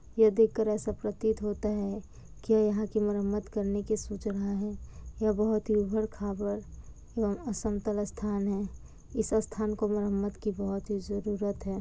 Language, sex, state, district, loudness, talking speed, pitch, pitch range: Hindi, female, Bihar, Kishanganj, -31 LUFS, 160 wpm, 210 Hz, 205-215 Hz